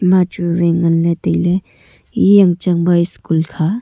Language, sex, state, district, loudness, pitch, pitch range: Wancho, female, Arunachal Pradesh, Longding, -14 LUFS, 175 Hz, 170-185 Hz